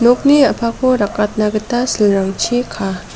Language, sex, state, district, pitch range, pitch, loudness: Garo, female, Meghalaya, South Garo Hills, 210-245 Hz, 230 Hz, -15 LUFS